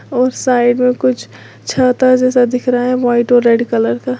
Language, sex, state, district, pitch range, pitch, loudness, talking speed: Hindi, female, Uttar Pradesh, Lalitpur, 225-250 Hz, 245 Hz, -13 LUFS, 200 wpm